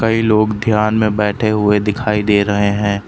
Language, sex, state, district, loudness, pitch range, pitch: Hindi, male, Uttar Pradesh, Lucknow, -15 LUFS, 105-110 Hz, 105 Hz